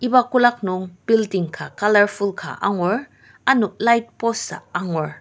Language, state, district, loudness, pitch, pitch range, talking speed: Ao, Nagaland, Dimapur, -20 LUFS, 205 Hz, 185-235 Hz, 150 wpm